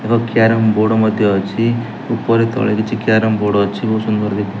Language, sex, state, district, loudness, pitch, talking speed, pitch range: Odia, male, Odisha, Nuapada, -15 LUFS, 110 Hz, 180 wpm, 105-115 Hz